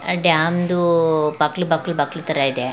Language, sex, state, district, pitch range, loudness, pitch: Kannada, female, Karnataka, Mysore, 150-170 Hz, -19 LUFS, 165 Hz